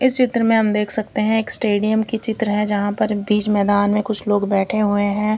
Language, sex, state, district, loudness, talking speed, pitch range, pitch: Hindi, female, Bihar, Katihar, -18 LUFS, 245 wpm, 205-220 Hz, 210 Hz